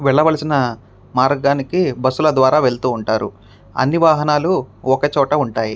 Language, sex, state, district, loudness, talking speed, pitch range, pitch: Telugu, male, Andhra Pradesh, Krishna, -16 LUFS, 115 wpm, 115-150 Hz, 135 Hz